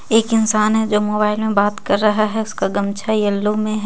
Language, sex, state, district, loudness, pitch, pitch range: Hindi, female, Jharkhand, Ranchi, -17 LUFS, 215 Hz, 210-220 Hz